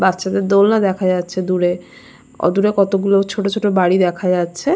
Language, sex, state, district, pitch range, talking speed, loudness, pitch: Bengali, female, West Bengal, Jalpaiguri, 180-200 Hz, 165 wpm, -16 LUFS, 190 Hz